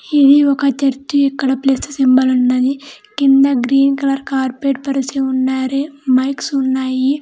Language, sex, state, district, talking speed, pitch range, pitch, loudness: Telugu, female, Andhra Pradesh, Anantapur, 125 wpm, 265-275 Hz, 275 Hz, -15 LUFS